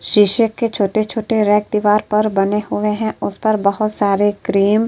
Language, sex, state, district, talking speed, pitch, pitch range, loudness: Hindi, female, Uttar Pradesh, Etah, 170 wpm, 210 Hz, 205-215 Hz, -16 LUFS